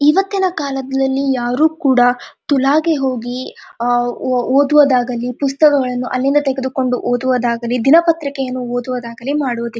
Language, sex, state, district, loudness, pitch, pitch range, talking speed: Kannada, female, Karnataka, Dharwad, -16 LUFS, 265 Hz, 245-285 Hz, 90 wpm